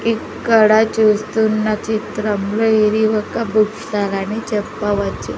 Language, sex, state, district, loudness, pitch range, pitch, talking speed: Telugu, female, Andhra Pradesh, Sri Satya Sai, -17 LUFS, 210-220 Hz, 215 Hz, 100 wpm